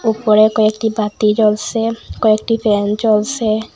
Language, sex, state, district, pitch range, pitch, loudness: Bengali, female, Assam, Hailakandi, 215-225 Hz, 215 Hz, -15 LUFS